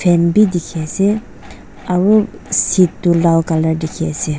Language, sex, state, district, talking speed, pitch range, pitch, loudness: Nagamese, female, Nagaland, Dimapur, 150 wpm, 160-190 Hz, 170 Hz, -15 LUFS